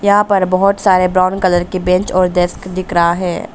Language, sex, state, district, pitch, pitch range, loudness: Hindi, female, Arunachal Pradesh, Papum Pare, 185 Hz, 180-195 Hz, -14 LUFS